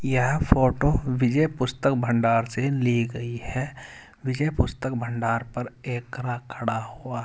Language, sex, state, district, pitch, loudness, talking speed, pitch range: Hindi, male, Uttar Pradesh, Saharanpur, 125 Hz, -25 LUFS, 150 wpm, 120-130 Hz